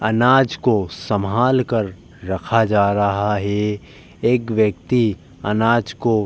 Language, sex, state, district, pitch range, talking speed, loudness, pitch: Hindi, male, Uttar Pradesh, Jalaun, 100-120 Hz, 125 wpm, -19 LUFS, 110 Hz